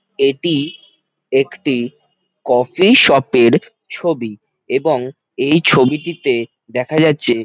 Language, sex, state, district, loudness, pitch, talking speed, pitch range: Bengali, male, West Bengal, Jalpaiguri, -15 LUFS, 135 Hz, 90 wpm, 125-160 Hz